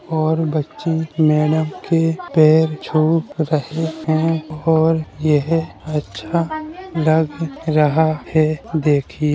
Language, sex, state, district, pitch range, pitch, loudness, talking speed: Bundeli, male, Uttar Pradesh, Jalaun, 155-160 Hz, 155 Hz, -18 LUFS, 105 wpm